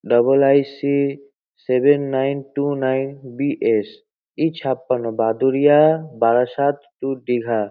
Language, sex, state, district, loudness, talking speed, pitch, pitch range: Bengali, male, West Bengal, North 24 Parganas, -19 LUFS, 115 wpm, 140 Hz, 130-145 Hz